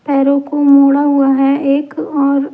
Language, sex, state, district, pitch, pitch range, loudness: Hindi, male, Delhi, New Delhi, 280 Hz, 275-285 Hz, -12 LUFS